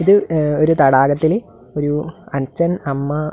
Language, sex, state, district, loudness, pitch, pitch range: Malayalam, male, Kerala, Kasaragod, -17 LUFS, 150 Hz, 140-160 Hz